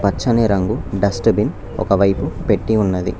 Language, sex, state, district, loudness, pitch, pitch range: Telugu, male, Telangana, Mahabubabad, -18 LUFS, 100 Hz, 95-110 Hz